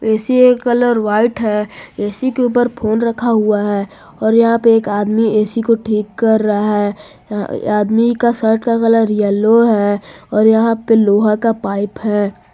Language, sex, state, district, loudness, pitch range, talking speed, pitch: Hindi, female, Jharkhand, Garhwa, -14 LUFS, 210-230 Hz, 180 wpm, 220 Hz